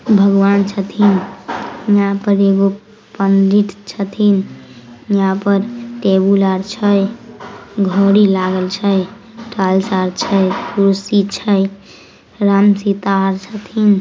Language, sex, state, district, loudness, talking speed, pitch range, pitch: Magahi, female, Bihar, Samastipur, -15 LUFS, 100 wpm, 195-205 Hz, 200 Hz